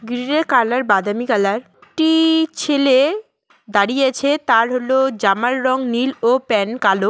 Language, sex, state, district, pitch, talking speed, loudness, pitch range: Bengali, female, West Bengal, Cooch Behar, 250 Hz, 125 wpm, -17 LUFS, 225-275 Hz